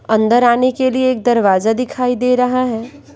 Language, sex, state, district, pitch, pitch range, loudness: Hindi, female, Bihar, Patna, 250 Hz, 230-255 Hz, -14 LUFS